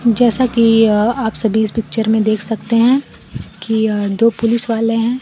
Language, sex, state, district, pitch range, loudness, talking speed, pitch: Hindi, female, Bihar, Kaimur, 220-235 Hz, -15 LUFS, 185 wpm, 225 Hz